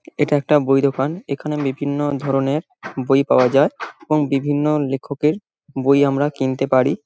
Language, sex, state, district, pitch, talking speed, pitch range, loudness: Bengali, male, West Bengal, Paschim Medinipur, 140 Hz, 145 wpm, 135-150 Hz, -19 LUFS